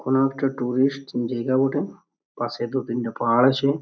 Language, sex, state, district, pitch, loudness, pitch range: Bengali, male, West Bengal, Purulia, 130 Hz, -23 LUFS, 120-135 Hz